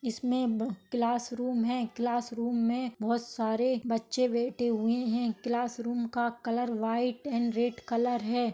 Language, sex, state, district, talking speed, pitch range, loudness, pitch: Hindi, female, Maharashtra, Solapur, 160 wpm, 230-245 Hz, -31 LUFS, 235 Hz